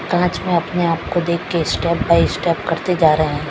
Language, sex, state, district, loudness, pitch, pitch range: Hindi, female, Chhattisgarh, Raipur, -18 LUFS, 170 Hz, 160-175 Hz